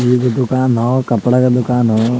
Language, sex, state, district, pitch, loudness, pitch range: Bhojpuri, male, Bihar, Muzaffarpur, 125 Hz, -14 LUFS, 120-125 Hz